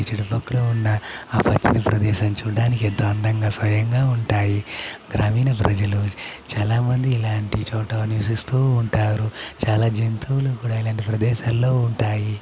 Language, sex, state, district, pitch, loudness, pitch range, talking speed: Telugu, male, Andhra Pradesh, Chittoor, 110 Hz, -21 LUFS, 105-120 Hz, 120 wpm